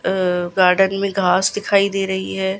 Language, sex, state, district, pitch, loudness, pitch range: Hindi, female, Gujarat, Gandhinagar, 190 Hz, -17 LUFS, 185-195 Hz